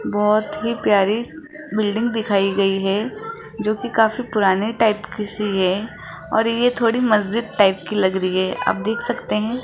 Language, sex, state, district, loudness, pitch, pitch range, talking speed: Hindi, female, Rajasthan, Jaipur, -20 LUFS, 215 Hz, 200-235 Hz, 175 wpm